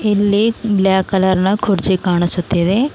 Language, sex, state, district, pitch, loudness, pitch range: Kannada, female, Karnataka, Bidar, 195 Hz, -15 LUFS, 185-210 Hz